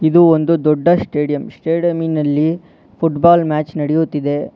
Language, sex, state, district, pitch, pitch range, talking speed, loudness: Kannada, male, Karnataka, Bangalore, 160 Hz, 150-165 Hz, 120 wpm, -15 LUFS